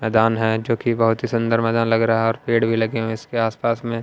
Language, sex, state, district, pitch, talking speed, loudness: Hindi, male, Haryana, Jhajjar, 115 Hz, 300 wpm, -20 LUFS